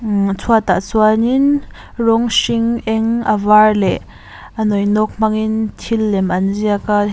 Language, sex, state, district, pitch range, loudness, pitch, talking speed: Mizo, female, Mizoram, Aizawl, 205-225 Hz, -15 LUFS, 215 Hz, 170 wpm